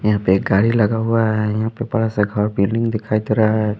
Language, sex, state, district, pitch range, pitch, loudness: Hindi, male, Bihar, West Champaran, 105-115 Hz, 110 Hz, -18 LUFS